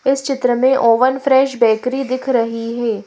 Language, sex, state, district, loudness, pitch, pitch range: Hindi, female, Madhya Pradesh, Bhopal, -16 LUFS, 255 Hz, 230-270 Hz